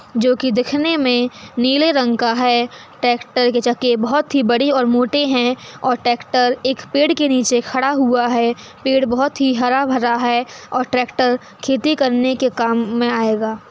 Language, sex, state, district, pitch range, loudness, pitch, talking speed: Hindi, female, Uttar Pradesh, Hamirpur, 240-265 Hz, -17 LUFS, 250 Hz, 175 wpm